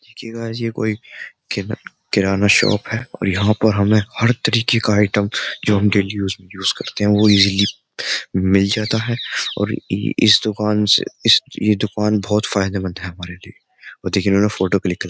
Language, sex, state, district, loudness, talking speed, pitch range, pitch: Hindi, male, Uttar Pradesh, Jyotiba Phule Nagar, -17 LUFS, 180 wpm, 100-110 Hz, 105 Hz